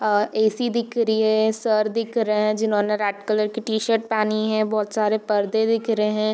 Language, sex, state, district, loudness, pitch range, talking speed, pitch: Hindi, female, Bihar, Gopalganj, -21 LUFS, 215-225 Hz, 245 wpm, 215 Hz